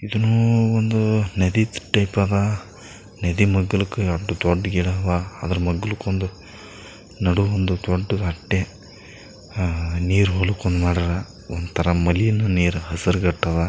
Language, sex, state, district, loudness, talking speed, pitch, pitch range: Kannada, male, Karnataka, Bijapur, -21 LUFS, 115 wpm, 95 Hz, 90-105 Hz